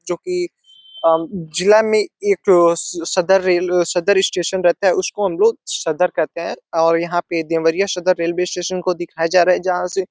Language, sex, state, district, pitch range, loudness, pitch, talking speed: Hindi, male, Uttar Pradesh, Deoria, 170-190 Hz, -17 LUFS, 180 Hz, 190 wpm